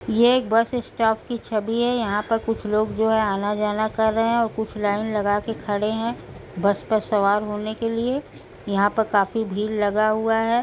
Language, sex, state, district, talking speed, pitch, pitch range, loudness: Hindi, female, Uttar Pradesh, Budaun, 210 wpm, 220 Hz, 210-225 Hz, -22 LUFS